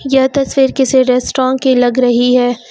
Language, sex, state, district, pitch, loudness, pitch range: Hindi, female, Uttar Pradesh, Lucknow, 260 Hz, -12 LUFS, 250-265 Hz